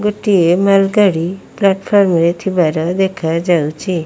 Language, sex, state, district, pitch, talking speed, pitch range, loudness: Odia, female, Odisha, Malkangiri, 185 Hz, 105 wpm, 170-195 Hz, -14 LUFS